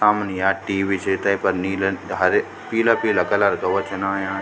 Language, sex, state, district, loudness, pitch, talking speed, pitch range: Garhwali, male, Uttarakhand, Tehri Garhwal, -21 LUFS, 95 Hz, 190 wpm, 95-105 Hz